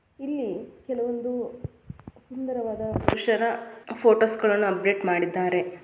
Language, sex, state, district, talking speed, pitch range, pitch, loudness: Kannada, female, Karnataka, Dharwad, 80 wpm, 200-240 Hz, 225 Hz, -25 LUFS